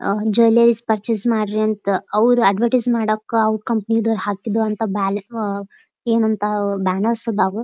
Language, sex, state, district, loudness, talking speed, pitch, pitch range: Kannada, female, Karnataka, Dharwad, -18 LUFS, 155 wpm, 220 Hz, 205-230 Hz